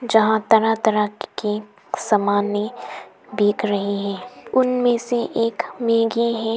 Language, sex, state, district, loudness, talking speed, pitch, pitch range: Hindi, female, Arunachal Pradesh, Papum Pare, -20 LUFS, 130 wpm, 220 Hz, 205-230 Hz